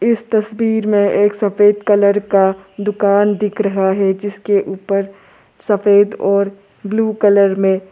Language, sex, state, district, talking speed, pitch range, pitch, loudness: Hindi, male, Arunachal Pradesh, Lower Dibang Valley, 135 wpm, 195-210 Hz, 205 Hz, -15 LUFS